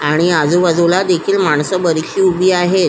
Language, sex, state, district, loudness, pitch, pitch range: Marathi, female, Maharashtra, Solapur, -13 LUFS, 180 Hz, 165-185 Hz